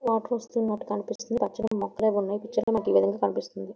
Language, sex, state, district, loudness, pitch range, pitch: Telugu, female, Andhra Pradesh, Visakhapatnam, -27 LUFS, 205-230 Hz, 220 Hz